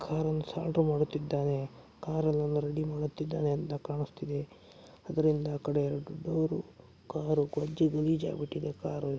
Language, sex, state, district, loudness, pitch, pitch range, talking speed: Kannada, male, Karnataka, Mysore, -32 LUFS, 150 Hz, 145-155 Hz, 125 wpm